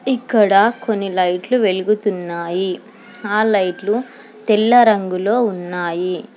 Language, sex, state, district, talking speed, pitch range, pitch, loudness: Telugu, female, Telangana, Hyderabad, 85 wpm, 185-225 Hz, 210 Hz, -17 LUFS